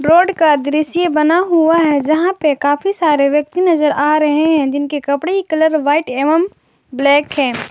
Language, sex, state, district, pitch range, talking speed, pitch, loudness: Hindi, male, Jharkhand, Garhwa, 290-335 Hz, 170 wpm, 305 Hz, -14 LUFS